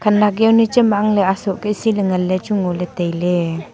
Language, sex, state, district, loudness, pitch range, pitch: Wancho, female, Arunachal Pradesh, Longding, -17 LUFS, 180-210 Hz, 195 Hz